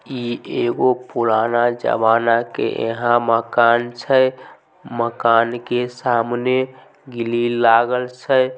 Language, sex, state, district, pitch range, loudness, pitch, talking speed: Maithili, male, Bihar, Samastipur, 115-125 Hz, -18 LUFS, 120 Hz, 105 wpm